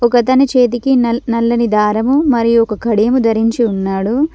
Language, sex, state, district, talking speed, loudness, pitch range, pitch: Telugu, female, Telangana, Mahabubabad, 140 wpm, -13 LUFS, 225-250 Hz, 235 Hz